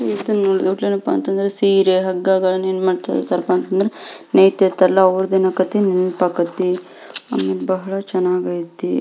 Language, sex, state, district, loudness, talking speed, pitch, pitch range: Kannada, female, Karnataka, Belgaum, -17 LUFS, 140 wpm, 185 Hz, 180-195 Hz